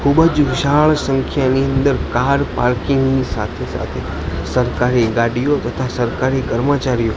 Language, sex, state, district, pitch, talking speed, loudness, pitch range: Gujarati, male, Gujarat, Gandhinagar, 130 Hz, 115 wpm, -17 LUFS, 120-140 Hz